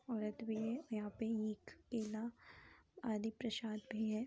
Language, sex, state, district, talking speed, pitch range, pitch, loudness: Hindi, female, Uttar Pradesh, Jyotiba Phule Nagar, 170 wpm, 215-230 Hz, 220 Hz, -44 LUFS